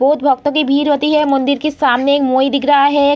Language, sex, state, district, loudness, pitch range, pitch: Hindi, female, Bihar, Samastipur, -13 LUFS, 275-290 Hz, 285 Hz